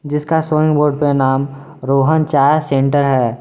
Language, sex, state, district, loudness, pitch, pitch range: Hindi, male, Jharkhand, Garhwa, -14 LUFS, 145 Hz, 135-155 Hz